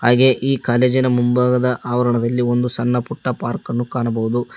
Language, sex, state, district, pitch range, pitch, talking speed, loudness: Kannada, male, Karnataka, Koppal, 120-125 Hz, 120 Hz, 130 wpm, -18 LUFS